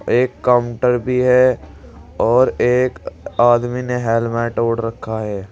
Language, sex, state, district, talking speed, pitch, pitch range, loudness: Hindi, male, Uttar Pradesh, Saharanpur, 130 wpm, 120 Hz, 115-125 Hz, -17 LUFS